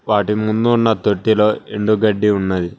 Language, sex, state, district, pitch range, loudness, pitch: Telugu, male, Telangana, Mahabubabad, 105-110 Hz, -16 LUFS, 105 Hz